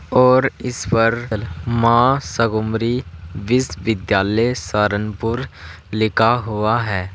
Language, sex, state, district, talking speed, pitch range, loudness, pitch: Hindi, male, Uttar Pradesh, Saharanpur, 85 wpm, 105-120 Hz, -18 LUFS, 110 Hz